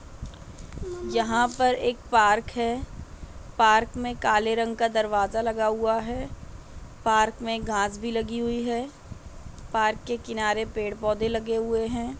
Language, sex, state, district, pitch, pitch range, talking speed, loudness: Hindi, female, Maharashtra, Nagpur, 225 Hz, 215-235 Hz, 145 wpm, -25 LUFS